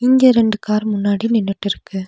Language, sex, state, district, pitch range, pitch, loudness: Tamil, female, Tamil Nadu, Nilgiris, 200-230 Hz, 215 Hz, -16 LUFS